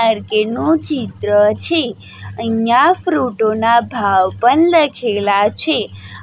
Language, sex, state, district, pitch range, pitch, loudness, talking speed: Gujarati, female, Gujarat, Gandhinagar, 205-305 Hz, 225 Hz, -15 LUFS, 75 wpm